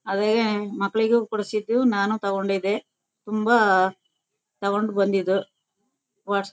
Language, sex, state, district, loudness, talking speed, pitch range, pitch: Kannada, female, Karnataka, Shimoga, -23 LUFS, 90 wpm, 195-220 Hz, 205 Hz